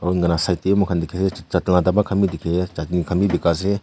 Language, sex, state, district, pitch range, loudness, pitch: Nagamese, male, Nagaland, Kohima, 85-95 Hz, -20 LUFS, 90 Hz